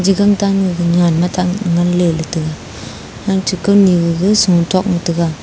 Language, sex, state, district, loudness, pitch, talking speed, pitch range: Wancho, female, Arunachal Pradesh, Longding, -14 LUFS, 180 Hz, 165 wpm, 170-195 Hz